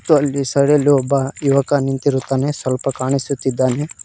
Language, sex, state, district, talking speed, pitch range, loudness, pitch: Kannada, male, Karnataka, Koppal, 135 wpm, 130-145 Hz, -17 LUFS, 140 Hz